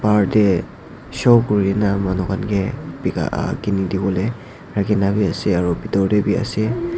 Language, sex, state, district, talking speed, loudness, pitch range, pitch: Nagamese, male, Nagaland, Dimapur, 130 wpm, -19 LUFS, 95-110 Hz, 100 Hz